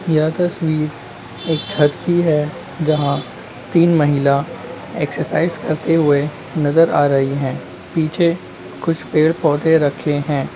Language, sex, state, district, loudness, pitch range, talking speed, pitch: Hindi, male, Uttarakhand, Uttarkashi, -17 LUFS, 145-165 Hz, 125 wpm, 155 Hz